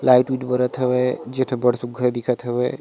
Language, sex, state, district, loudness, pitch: Chhattisgarhi, male, Chhattisgarh, Sarguja, -21 LUFS, 125 Hz